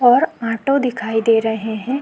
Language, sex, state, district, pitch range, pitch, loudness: Hindi, female, Chhattisgarh, Sukma, 225-250 Hz, 230 Hz, -18 LUFS